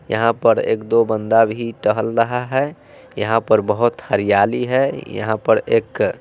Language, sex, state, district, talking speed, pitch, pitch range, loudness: Hindi, male, Bihar, West Champaran, 165 wpm, 115 Hz, 110-130 Hz, -18 LUFS